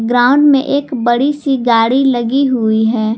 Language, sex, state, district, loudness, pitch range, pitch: Hindi, female, Jharkhand, Garhwa, -12 LUFS, 230-275 Hz, 250 Hz